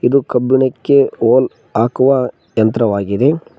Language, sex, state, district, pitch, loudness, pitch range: Kannada, male, Karnataka, Koppal, 125 Hz, -14 LUFS, 115-135 Hz